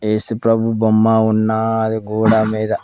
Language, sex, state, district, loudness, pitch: Telugu, male, Telangana, Mahabubabad, -16 LUFS, 110 Hz